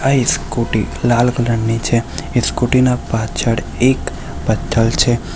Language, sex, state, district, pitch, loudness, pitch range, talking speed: Gujarati, male, Gujarat, Valsad, 120 Hz, -16 LUFS, 115-125 Hz, 135 wpm